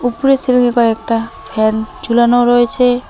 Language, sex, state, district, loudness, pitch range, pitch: Bengali, male, West Bengal, Alipurduar, -13 LUFS, 230-245 Hz, 240 Hz